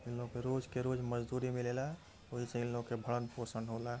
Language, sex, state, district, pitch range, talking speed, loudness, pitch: Hindi, male, Uttar Pradesh, Gorakhpur, 120-125 Hz, 240 wpm, -40 LUFS, 120 Hz